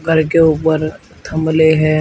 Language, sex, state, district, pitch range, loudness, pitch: Hindi, male, Uttar Pradesh, Shamli, 155-160 Hz, -14 LUFS, 160 Hz